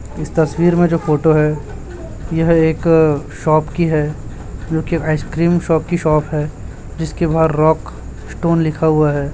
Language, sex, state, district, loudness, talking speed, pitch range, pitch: Hindi, male, Chhattisgarh, Raipur, -16 LUFS, 155 wpm, 150-165 Hz, 155 Hz